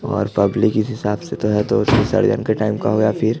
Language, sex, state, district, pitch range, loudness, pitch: Hindi, male, Chhattisgarh, Jashpur, 105-110 Hz, -18 LUFS, 105 Hz